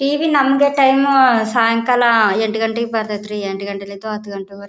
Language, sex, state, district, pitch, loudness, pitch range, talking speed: Kannada, female, Karnataka, Bellary, 225 Hz, -16 LUFS, 210-265 Hz, 155 wpm